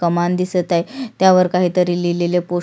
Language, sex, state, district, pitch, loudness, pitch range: Marathi, female, Maharashtra, Sindhudurg, 180 Hz, -17 LUFS, 175-180 Hz